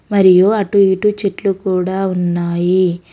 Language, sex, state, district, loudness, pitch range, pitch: Telugu, female, Telangana, Hyderabad, -14 LUFS, 180-200 Hz, 190 Hz